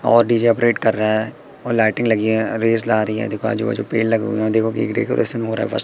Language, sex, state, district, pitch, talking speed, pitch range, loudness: Hindi, male, Madhya Pradesh, Katni, 110 Hz, 275 wpm, 110-115 Hz, -18 LUFS